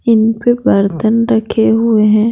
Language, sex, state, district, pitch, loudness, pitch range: Hindi, female, Bihar, Patna, 225 Hz, -12 LUFS, 220-230 Hz